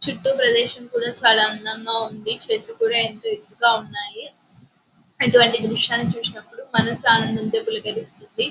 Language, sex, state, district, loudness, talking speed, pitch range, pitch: Telugu, female, Andhra Pradesh, Anantapur, -19 LUFS, 135 wpm, 220-245 Hz, 225 Hz